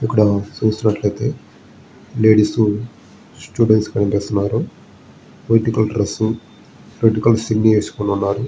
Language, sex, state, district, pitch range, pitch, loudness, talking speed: Telugu, male, Andhra Pradesh, Visakhapatnam, 105-115 Hz, 110 Hz, -17 LUFS, 90 wpm